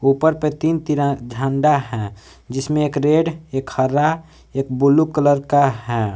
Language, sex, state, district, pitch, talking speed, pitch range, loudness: Hindi, male, Jharkhand, Palamu, 140 Hz, 155 wpm, 135-150 Hz, -19 LUFS